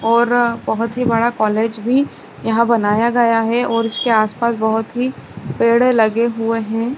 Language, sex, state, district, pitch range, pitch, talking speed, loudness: Hindi, female, Bihar, Saran, 225-240 Hz, 230 Hz, 170 wpm, -16 LUFS